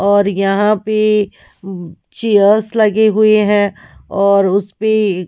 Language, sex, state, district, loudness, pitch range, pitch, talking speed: Hindi, female, Punjab, Pathankot, -13 LUFS, 200-215 Hz, 205 Hz, 100 wpm